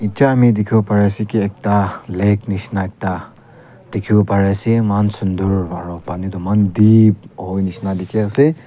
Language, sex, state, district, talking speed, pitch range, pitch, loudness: Nagamese, male, Nagaland, Kohima, 175 wpm, 95-110 Hz, 100 Hz, -16 LUFS